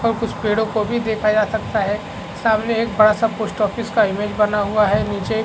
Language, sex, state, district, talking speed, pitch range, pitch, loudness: Hindi, male, Chhattisgarh, Raigarh, 230 wpm, 210-220 Hz, 215 Hz, -19 LUFS